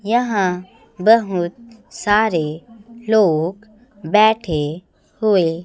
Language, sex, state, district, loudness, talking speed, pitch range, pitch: Hindi, female, Chhattisgarh, Raipur, -18 LUFS, 65 wpm, 175-225 Hz, 205 Hz